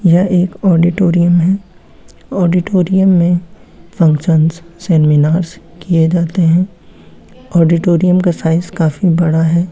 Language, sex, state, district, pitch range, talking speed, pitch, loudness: Hindi, male, Uttar Pradesh, Etah, 165-180 Hz, 105 wpm, 175 Hz, -12 LUFS